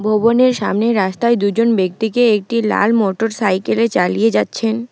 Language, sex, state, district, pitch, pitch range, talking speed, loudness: Bengali, female, West Bengal, Alipurduar, 220 Hz, 205-230 Hz, 120 wpm, -15 LUFS